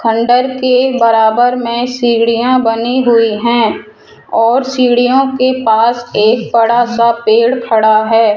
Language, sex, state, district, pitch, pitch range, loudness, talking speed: Hindi, female, Rajasthan, Jaipur, 235 Hz, 225-250 Hz, -11 LUFS, 130 wpm